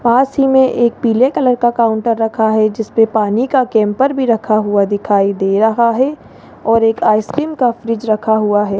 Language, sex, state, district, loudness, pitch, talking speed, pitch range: Hindi, male, Rajasthan, Jaipur, -14 LUFS, 225 Hz, 205 wpm, 215-245 Hz